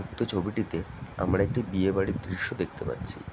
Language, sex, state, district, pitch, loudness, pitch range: Bengali, male, West Bengal, Jhargram, 95 Hz, -30 LUFS, 95-110 Hz